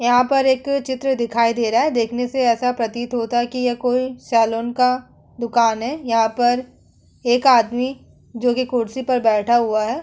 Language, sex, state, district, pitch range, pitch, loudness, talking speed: Hindi, female, Uttar Pradesh, Muzaffarnagar, 230-255 Hz, 245 Hz, -19 LUFS, 185 wpm